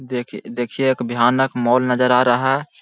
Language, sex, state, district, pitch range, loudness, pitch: Hindi, male, Bihar, Jahanabad, 120-130 Hz, -18 LUFS, 125 Hz